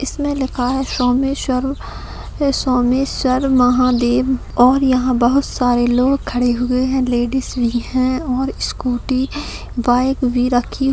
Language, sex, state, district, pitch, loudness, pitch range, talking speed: Hindi, female, Bihar, Gaya, 255 Hz, -17 LUFS, 245-265 Hz, 120 wpm